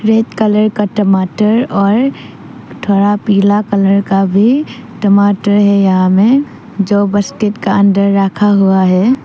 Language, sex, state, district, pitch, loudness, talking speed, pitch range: Hindi, female, Arunachal Pradesh, Papum Pare, 205 Hz, -11 LUFS, 130 wpm, 195-215 Hz